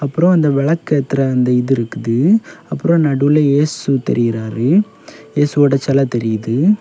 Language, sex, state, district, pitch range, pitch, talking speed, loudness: Tamil, male, Tamil Nadu, Kanyakumari, 125-165 Hz, 140 Hz, 125 wpm, -15 LUFS